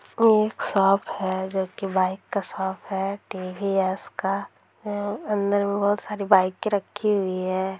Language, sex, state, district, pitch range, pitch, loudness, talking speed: Hindi, female, Bihar, Sitamarhi, 190-205 Hz, 195 Hz, -24 LUFS, 155 wpm